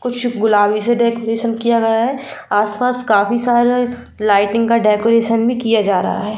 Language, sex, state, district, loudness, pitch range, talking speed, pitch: Hindi, female, Jharkhand, Jamtara, -15 LUFS, 215-240 Hz, 170 wpm, 230 Hz